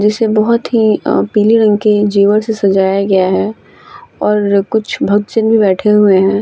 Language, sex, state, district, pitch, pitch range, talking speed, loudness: Hindi, female, Bihar, Vaishali, 210 Hz, 200-220 Hz, 185 wpm, -12 LUFS